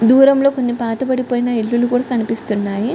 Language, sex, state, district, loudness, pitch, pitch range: Telugu, female, Andhra Pradesh, Chittoor, -16 LUFS, 240 Hz, 225-255 Hz